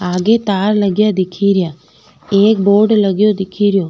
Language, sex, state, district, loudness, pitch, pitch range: Rajasthani, female, Rajasthan, Nagaur, -13 LUFS, 200 Hz, 185-210 Hz